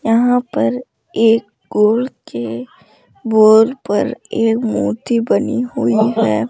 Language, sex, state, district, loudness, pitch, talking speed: Hindi, female, Rajasthan, Jaipur, -15 LUFS, 220 Hz, 110 wpm